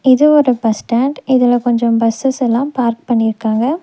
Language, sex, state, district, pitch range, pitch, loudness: Tamil, female, Tamil Nadu, Nilgiris, 230-265 Hz, 245 Hz, -14 LUFS